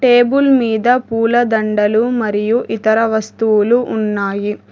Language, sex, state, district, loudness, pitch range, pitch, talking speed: Telugu, female, Telangana, Hyderabad, -14 LUFS, 215-240 Hz, 225 Hz, 90 wpm